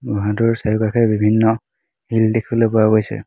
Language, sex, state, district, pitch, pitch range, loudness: Assamese, male, Assam, Hailakandi, 110 Hz, 110-115 Hz, -17 LUFS